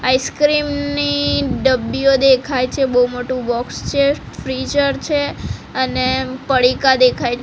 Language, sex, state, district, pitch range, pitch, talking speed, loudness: Gujarati, female, Gujarat, Gandhinagar, 255-280 Hz, 260 Hz, 115 wpm, -17 LUFS